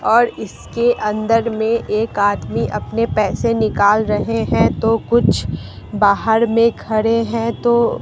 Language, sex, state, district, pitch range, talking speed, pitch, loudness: Hindi, female, Bihar, Katihar, 210-230 Hz, 135 wpm, 225 Hz, -17 LUFS